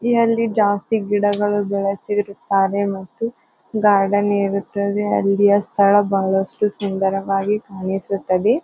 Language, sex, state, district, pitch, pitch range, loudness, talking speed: Kannada, female, Karnataka, Bijapur, 200 Hz, 195-205 Hz, -19 LUFS, 95 wpm